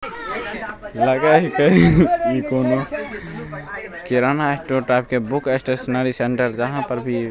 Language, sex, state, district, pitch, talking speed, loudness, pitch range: Maithili, male, Bihar, Begusarai, 130 Hz, 115 wpm, -19 LUFS, 125-140 Hz